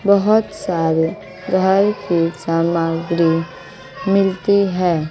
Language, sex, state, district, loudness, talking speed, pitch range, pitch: Hindi, female, Bihar, West Champaran, -17 LUFS, 95 wpm, 165-195 Hz, 175 Hz